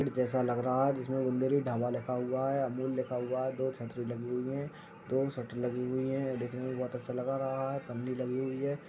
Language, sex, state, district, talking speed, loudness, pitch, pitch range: Hindi, male, Uttar Pradesh, Hamirpur, 245 wpm, -34 LUFS, 130 Hz, 125-135 Hz